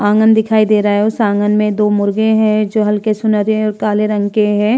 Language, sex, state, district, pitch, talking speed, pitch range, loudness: Hindi, female, Uttar Pradesh, Hamirpur, 215 Hz, 240 wpm, 210-215 Hz, -13 LUFS